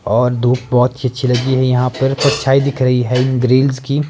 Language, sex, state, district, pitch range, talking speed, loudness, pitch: Hindi, male, Himachal Pradesh, Shimla, 125-135 Hz, 220 wpm, -14 LUFS, 130 Hz